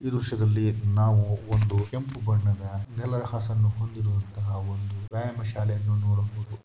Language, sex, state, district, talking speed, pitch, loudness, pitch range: Kannada, male, Karnataka, Shimoga, 110 wpm, 105 Hz, -27 LUFS, 105-110 Hz